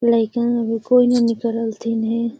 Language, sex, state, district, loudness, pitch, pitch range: Magahi, female, Bihar, Gaya, -19 LUFS, 230 Hz, 225-240 Hz